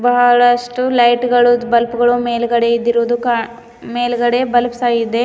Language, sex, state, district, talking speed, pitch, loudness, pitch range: Kannada, female, Karnataka, Bidar, 115 wpm, 240 Hz, -14 LUFS, 235-245 Hz